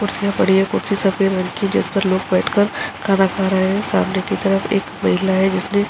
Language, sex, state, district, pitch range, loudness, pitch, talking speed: Hindi, female, Uttar Pradesh, Jalaun, 190-200 Hz, -17 LUFS, 195 Hz, 235 wpm